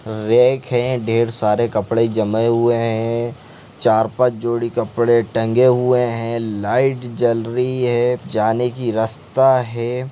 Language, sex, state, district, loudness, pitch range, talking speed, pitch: Hindi, male, Chhattisgarh, Sarguja, -17 LUFS, 115-125 Hz, 135 wpm, 120 Hz